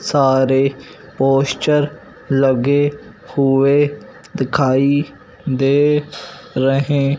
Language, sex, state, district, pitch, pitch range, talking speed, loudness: Hindi, male, Punjab, Fazilka, 140 Hz, 135-145 Hz, 60 wpm, -16 LUFS